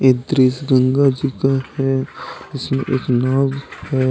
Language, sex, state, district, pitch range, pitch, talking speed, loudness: Hindi, male, Jharkhand, Deoghar, 130-135 Hz, 135 Hz, 130 wpm, -18 LUFS